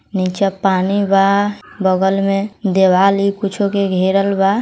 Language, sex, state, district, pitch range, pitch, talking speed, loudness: Hindi, female, Bihar, East Champaran, 190-200 Hz, 195 Hz, 145 wpm, -15 LUFS